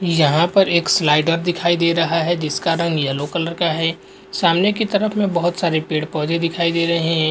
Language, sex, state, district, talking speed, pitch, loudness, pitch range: Hindi, male, Uttarakhand, Uttarkashi, 195 wpm, 170 Hz, -18 LUFS, 160-175 Hz